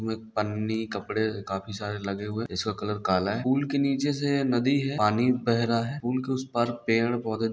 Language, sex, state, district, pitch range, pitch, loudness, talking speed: Hindi, male, Bihar, Samastipur, 105-130 Hz, 115 Hz, -27 LUFS, 205 wpm